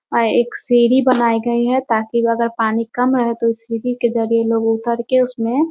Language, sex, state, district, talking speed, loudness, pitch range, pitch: Hindi, female, Bihar, Muzaffarpur, 240 wpm, -17 LUFS, 230-245 Hz, 235 Hz